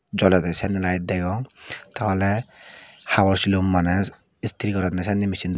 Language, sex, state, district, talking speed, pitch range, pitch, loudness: Chakma, male, Tripura, Dhalai, 130 wpm, 90-100 Hz, 95 Hz, -22 LUFS